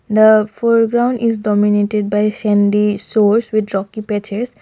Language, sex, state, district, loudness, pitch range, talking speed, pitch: English, female, Assam, Kamrup Metropolitan, -15 LUFS, 205-225 Hz, 130 wpm, 215 Hz